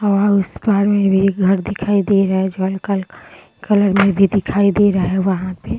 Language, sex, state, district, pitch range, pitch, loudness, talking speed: Hindi, female, Bihar, Gaya, 190-200 Hz, 195 Hz, -16 LUFS, 215 wpm